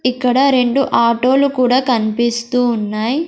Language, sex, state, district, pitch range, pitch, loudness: Telugu, female, Andhra Pradesh, Sri Satya Sai, 235-260 Hz, 250 Hz, -15 LUFS